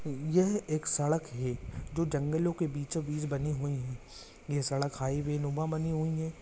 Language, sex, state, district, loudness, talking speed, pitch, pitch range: Hindi, male, Jharkhand, Jamtara, -33 LUFS, 185 wpm, 150 Hz, 140-160 Hz